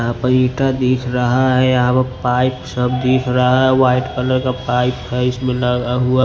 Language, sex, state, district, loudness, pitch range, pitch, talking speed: Hindi, male, Maharashtra, Washim, -16 LUFS, 125-130 Hz, 125 Hz, 210 wpm